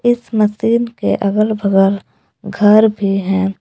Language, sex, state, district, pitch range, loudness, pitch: Hindi, female, Jharkhand, Palamu, 195-220 Hz, -14 LUFS, 210 Hz